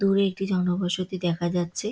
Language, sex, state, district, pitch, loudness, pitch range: Bengali, female, West Bengal, Dakshin Dinajpur, 185 Hz, -26 LUFS, 175-195 Hz